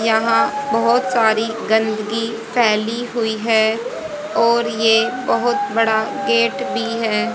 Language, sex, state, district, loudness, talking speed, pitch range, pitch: Hindi, female, Haryana, Rohtak, -18 LUFS, 115 wpm, 220-235 Hz, 225 Hz